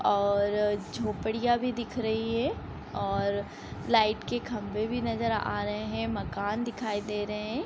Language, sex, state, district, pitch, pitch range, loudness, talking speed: Hindi, female, Bihar, Sitamarhi, 215 Hz, 200-230 Hz, -30 LUFS, 170 wpm